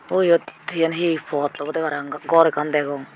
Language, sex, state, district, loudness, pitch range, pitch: Chakma, female, Tripura, Unakoti, -21 LUFS, 145-165 Hz, 160 Hz